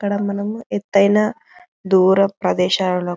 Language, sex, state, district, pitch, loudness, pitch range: Telugu, female, Telangana, Karimnagar, 200 Hz, -17 LUFS, 190-210 Hz